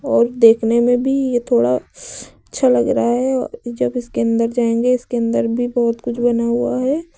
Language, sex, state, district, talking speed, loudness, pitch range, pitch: Hindi, female, Uttar Pradesh, Lucknow, 185 wpm, -17 LUFS, 235-250 Hz, 240 Hz